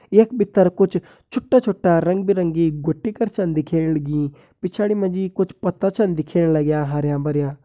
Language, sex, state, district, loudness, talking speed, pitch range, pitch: Kumaoni, male, Uttarakhand, Uttarkashi, -20 LUFS, 140 wpm, 155-200 Hz, 180 Hz